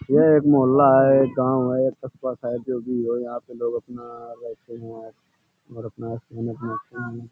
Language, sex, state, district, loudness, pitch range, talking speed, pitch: Hindi, male, Uttar Pradesh, Hamirpur, -21 LUFS, 115-130 Hz, 190 wpm, 120 Hz